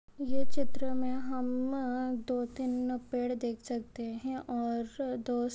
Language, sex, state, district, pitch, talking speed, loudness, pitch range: Hindi, male, Maharashtra, Dhule, 250 Hz, 130 wpm, -35 LUFS, 245-260 Hz